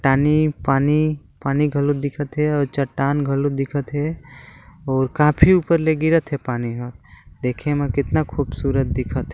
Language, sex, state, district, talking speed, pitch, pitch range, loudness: Chhattisgarhi, male, Chhattisgarh, Balrampur, 155 wpm, 145 Hz, 135-150 Hz, -20 LUFS